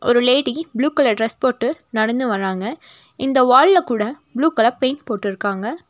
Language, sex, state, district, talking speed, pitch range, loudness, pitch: Tamil, female, Tamil Nadu, Nilgiris, 150 wpm, 225-280 Hz, -18 LUFS, 250 Hz